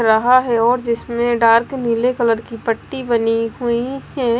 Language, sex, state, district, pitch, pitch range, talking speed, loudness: Hindi, female, Bihar, West Champaran, 235 Hz, 230-245 Hz, 165 wpm, -17 LUFS